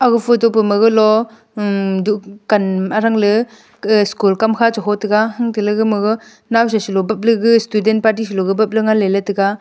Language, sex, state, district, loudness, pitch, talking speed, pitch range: Wancho, female, Arunachal Pradesh, Longding, -15 LUFS, 215 Hz, 145 wpm, 205-225 Hz